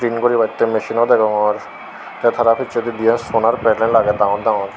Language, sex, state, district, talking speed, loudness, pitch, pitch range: Chakma, male, Tripura, Unakoti, 175 wpm, -16 LUFS, 115 Hz, 110-120 Hz